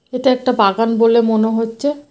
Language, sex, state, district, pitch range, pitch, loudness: Bengali, female, West Bengal, North 24 Parganas, 225-255 Hz, 230 Hz, -15 LUFS